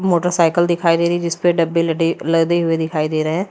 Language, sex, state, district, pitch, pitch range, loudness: Hindi, female, Uttar Pradesh, Lalitpur, 170 Hz, 165-175 Hz, -17 LUFS